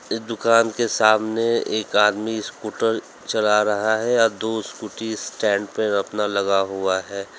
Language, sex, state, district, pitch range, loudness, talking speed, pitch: Hindi, male, Uttar Pradesh, Lalitpur, 105-110 Hz, -21 LUFS, 155 wpm, 110 Hz